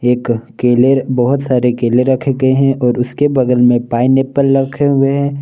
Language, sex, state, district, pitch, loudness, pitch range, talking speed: Hindi, male, Jharkhand, Palamu, 130 Hz, -13 LUFS, 125-135 Hz, 175 wpm